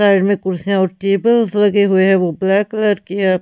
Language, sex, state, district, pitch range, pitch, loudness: Hindi, female, Punjab, Pathankot, 190-205 Hz, 195 Hz, -15 LUFS